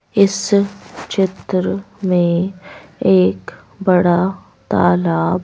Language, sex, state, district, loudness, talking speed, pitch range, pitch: Hindi, female, Madhya Pradesh, Bhopal, -17 LUFS, 65 wpm, 170-195 Hz, 185 Hz